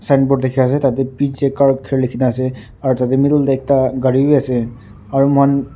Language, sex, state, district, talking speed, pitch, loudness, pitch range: Nagamese, male, Nagaland, Dimapur, 200 wpm, 135 Hz, -15 LUFS, 130-140 Hz